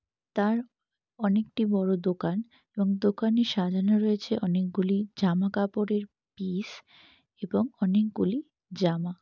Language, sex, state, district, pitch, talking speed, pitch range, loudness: Bengali, female, West Bengal, Jalpaiguri, 200 Hz, 115 wpm, 190-215 Hz, -28 LUFS